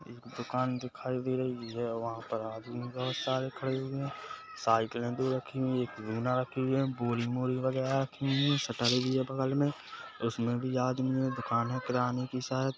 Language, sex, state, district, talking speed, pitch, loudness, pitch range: Hindi, male, Chhattisgarh, Kabirdham, 195 wpm, 125 Hz, -33 LUFS, 120-130 Hz